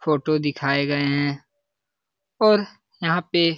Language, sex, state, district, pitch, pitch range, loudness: Hindi, male, Bihar, Lakhisarai, 155 Hz, 145-180 Hz, -22 LUFS